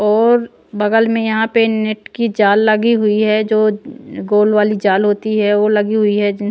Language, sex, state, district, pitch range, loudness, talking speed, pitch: Hindi, female, Punjab, Pathankot, 210-225 Hz, -14 LUFS, 195 wpm, 215 Hz